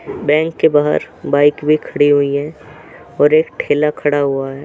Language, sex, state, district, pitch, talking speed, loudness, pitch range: Hindi, male, Uttar Pradesh, Jalaun, 145 Hz, 180 wpm, -15 LUFS, 145-150 Hz